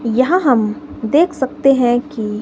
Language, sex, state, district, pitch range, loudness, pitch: Hindi, female, Himachal Pradesh, Shimla, 230-290 Hz, -15 LUFS, 255 Hz